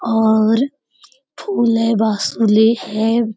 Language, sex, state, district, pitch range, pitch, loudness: Hindi, female, Bihar, Jamui, 220-235 Hz, 225 Hz, -16 LUFS